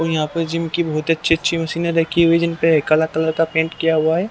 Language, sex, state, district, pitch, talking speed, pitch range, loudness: Hindi, male, Haryana, Jhajjar, 165 Hz, 290 wpm, 160-165 Hz, -18 LUFS